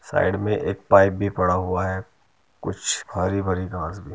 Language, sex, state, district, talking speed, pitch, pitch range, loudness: Hindi, male, Uttar Pradesh, Muzaffarnagar, 190 wpm, 95 Hz, 90-100 Hz, -22 LUFS